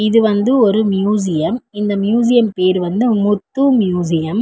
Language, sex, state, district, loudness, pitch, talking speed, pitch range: Tamil, female, Tamil Nadu, Chennai, -15 LUFS, 210 Hz, 150 wpm, 190-235 Hz